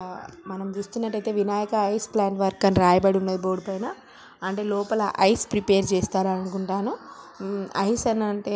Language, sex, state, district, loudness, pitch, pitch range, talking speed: Telugu, female, Andhra Pradesh, Krishna, -24 LUFS, 200 Hz, 190-210 Hz, 135 wpm